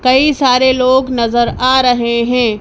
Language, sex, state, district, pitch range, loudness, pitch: Hindi, male, Madhya Pradesh, Bhopal, 240-260 Hz, -12 LUFS, 255 Hz